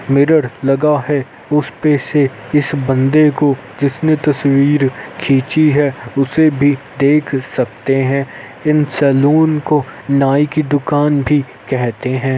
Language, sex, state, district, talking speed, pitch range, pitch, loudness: Hindi, male, Uttar Pradesh, Etah, 140 wpm, 135-150 Hz, 140 Hz, -14 LUFS